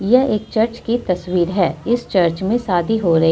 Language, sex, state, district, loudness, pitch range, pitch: Hindi, female, Jharkhand, Deoghar, -18 LUFS, 175-230 Hz, 195 Hz